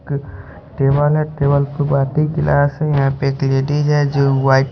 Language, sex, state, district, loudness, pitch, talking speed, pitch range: Hindi, male, Odisha, Khordha, -16 LUFS, 140 Hz, 205 wpm, 135-145 Hz